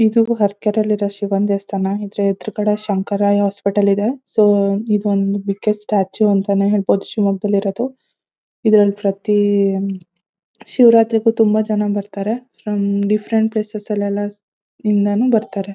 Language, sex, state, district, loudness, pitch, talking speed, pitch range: Kannada, female, Karnataka, Shimoga, -17 LUFS, 205 Hz, 120 wpm, 200-215 Hz